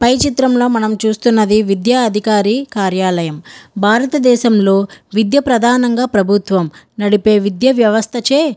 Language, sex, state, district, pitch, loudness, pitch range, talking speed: Telugu, female, Andhra Pradesh, Guntur, 220 Hz, -13 LUFS, 205-245 Hz, 105 wpm